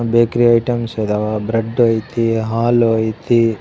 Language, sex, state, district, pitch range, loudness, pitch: Kannada, male, Karnataka, Raichur, 110-120 Hz, -16 LUFS, 115 Hz